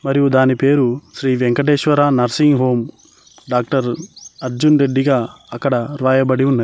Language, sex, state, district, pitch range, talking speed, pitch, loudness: Telugu, male, Telangana, Mahabubabad, 125-140 Hz, 125 wpm, 130 Hz, -16 LUFS